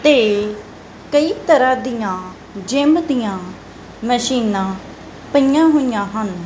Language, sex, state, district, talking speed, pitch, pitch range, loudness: Punjabi, female, Punjab, Kapurthala, 95 wpm, 245 Hz, 200-285 Hz, -17 LUFS